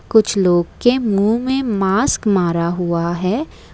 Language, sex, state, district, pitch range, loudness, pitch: Hindi, female, Assam, Kamrup Metropolitan, 175-230 Hz, -17 LUFS, 200 Hz